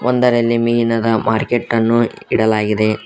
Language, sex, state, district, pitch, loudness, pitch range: Kannada, male, Karnataka, Koppal, 115 Hz, -16 LUFS, 110-120 Hz